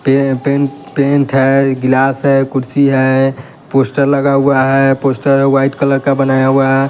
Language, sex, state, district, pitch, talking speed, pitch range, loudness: Hindi, male, Bihar, West Champaran, 135 Hz, 165 wpm, 135-140 Hz, -12 LUFS